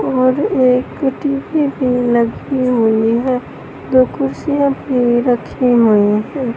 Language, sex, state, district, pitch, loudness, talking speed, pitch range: Hindi, female, Madhya Pradesh, Katni, 250 Hz, -15 LUFS, 120 wpm, 235-270 Hz